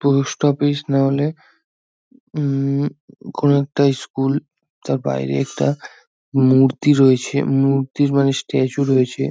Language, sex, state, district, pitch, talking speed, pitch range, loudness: Bengali, male, West Bengal, North 24 Parganas, 135 Hz, 110 wpm, 130-145 Hz, -18 LUFS